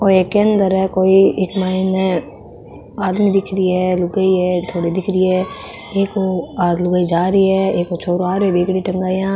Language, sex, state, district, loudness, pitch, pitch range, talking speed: Marwari, female, Rajasthan, Nagaur, -16 LUFS, 185 Hz, 180-190 Hz, 200 wpm